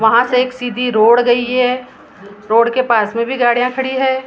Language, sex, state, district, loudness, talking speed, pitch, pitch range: Hindi, female, Maharashtra, Gondia, -14 LUFS, 210 wpm, 245 Hz, 230-255 Hz